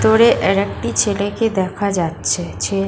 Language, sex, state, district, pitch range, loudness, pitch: Bengali, female, West Bengal, North 24 Parganas, 195-210 Hz, -17 LUFS, 200 Hz